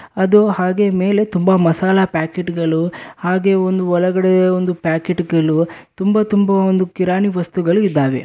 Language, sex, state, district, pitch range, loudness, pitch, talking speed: Kannada, male, Karnataka, Bellary, 170-190 Hz, -16 LUFS, 185 Hz, 125 wpm